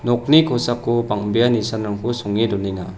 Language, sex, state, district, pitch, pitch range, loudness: Garo, male, Meghalaya, West Garo Hills, 115 Hz, 105-120 Hz, -19 LUFS